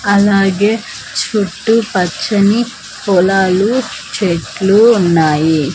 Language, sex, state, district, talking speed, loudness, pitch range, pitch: Telugu, female, Andhra Pradesh, Manyam, 50 wpm, -13 LUFS, 180-220 Hz, 200 Hz